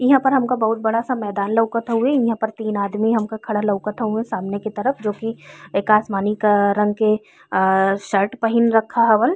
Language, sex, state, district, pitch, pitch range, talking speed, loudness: Bhojpuri, female, Uttar Pradesh, Ghazipur, 220 Hz, 205-230 Hz, 200 wpm, -19 LUFS